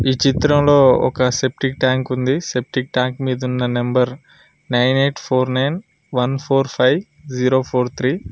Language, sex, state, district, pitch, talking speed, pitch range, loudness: Telugu, female, Telangana, Mahabubabad, 130 Hz, 150 wpm, 125-135 Hz, -18 LUFS